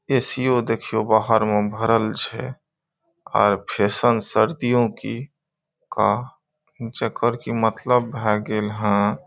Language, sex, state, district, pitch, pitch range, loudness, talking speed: Maithili, male, Bihar, Saharsa, 115 Hz, 110-130 Hz, -21 LUFS, 115 wpm